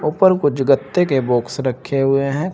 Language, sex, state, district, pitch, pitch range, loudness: Hindi, male, Uttar Pradesh, Shamli, 140 Hz, 135-155 Hz, -17 LUFS